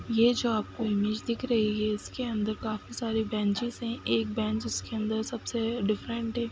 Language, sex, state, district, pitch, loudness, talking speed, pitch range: Hindi, female, Bihar, Sitamarhi, 220 Hz, -30 LUFS, 185 wpm, 210-235 Hz